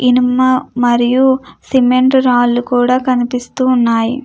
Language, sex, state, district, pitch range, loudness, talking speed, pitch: Telugu, female, Andhra Pradesh, Krishna, 245-255 Hz, -13 LUFS, 85 wpm, 250 Hz